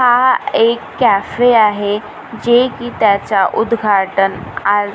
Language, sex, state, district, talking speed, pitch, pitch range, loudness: Marathi, female, Maharashtra, Gondia, 110 wpm, 215 Hz, 200-240 Hz, -14 LUFS